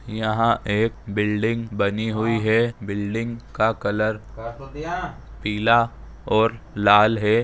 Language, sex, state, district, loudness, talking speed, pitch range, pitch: Hindi, male, Rajasthan, Churu, -22 LUFS, 105 wpm, 105-115 Hz, 110 Hz